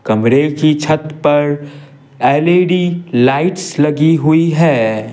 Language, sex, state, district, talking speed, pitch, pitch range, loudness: Hindi, male, Bihar, Patna, 105 wpm, 150 Hz, 140-165 Hz, -13 LUFS